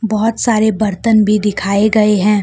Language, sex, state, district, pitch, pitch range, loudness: Hindi, female, Jharkhand, Deoghar, 215 Hz, 205-220 Hz, -13 LUFS